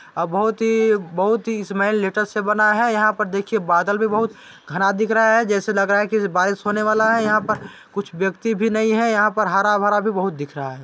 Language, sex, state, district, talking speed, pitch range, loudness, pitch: Chhattisgarhi, male, Chhattisgarh, Balrampur, 250 wpm, 195-220 Hz, -19 LUFS, 210 Hz